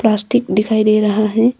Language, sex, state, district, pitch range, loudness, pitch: Hindi, female, Arunachal Pradesh, Longding, 210-230 Hz, -15 LUFS, 215 Hz